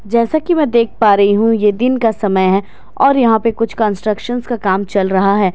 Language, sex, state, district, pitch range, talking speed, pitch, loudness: Hindi, female, Bihar, Katihar, 200-240 Hz, 250 wpm, 220 Hz, -14 LUFS